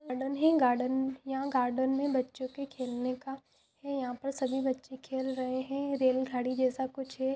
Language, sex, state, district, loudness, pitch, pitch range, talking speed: Hindi, female, Jharkhand, Jamtara, -32 LUFS, 265 Hz, 255-270 Hz, 170 wpm